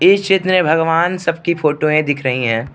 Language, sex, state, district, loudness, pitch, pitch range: Hindi, male, Arunachal Pradesh, Lower Dibang Valley, -15 LUFS, 165 Hz, 145-185 Hz